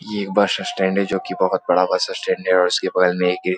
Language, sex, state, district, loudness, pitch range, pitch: Hindi, male, Bihar, Lakhisarai, -19 LUFS, 90-105 Hz, 95 Hz